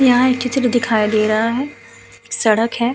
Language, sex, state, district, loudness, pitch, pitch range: Hindi, female, Uttar Pradesh, Hamirpur, -17 LUFS, 235 Hz, 220-250 Hz